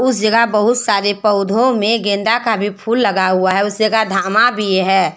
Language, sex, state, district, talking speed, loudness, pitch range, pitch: Hindi, female, Jharkhand, Deoghar, 210 wpm, -14 LUFS, 200-230 Hz, 210 Hz